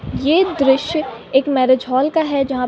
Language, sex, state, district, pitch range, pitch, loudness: Hindi, female, Uttar Pradesh, Gorakhpur, 260-310 Hz, 275 Hz, -16 LUFS